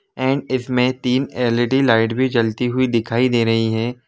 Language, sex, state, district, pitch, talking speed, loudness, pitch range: Hindi, male, Jharkhand, Jamtara, 125 Hz, 175 wpm, -18 LUFS, 115-130 Hz